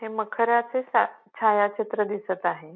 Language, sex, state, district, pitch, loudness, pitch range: Marathi, female, Maharashtra, Pune, 220 Hz, -25 LUFS, 205-230 Hz